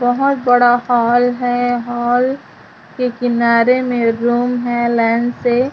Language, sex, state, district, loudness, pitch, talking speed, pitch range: Hindi, female, Chhattisgarh, Raipur, -15 LUFS, 245 Hz, 125 wpm, 240-245 Hz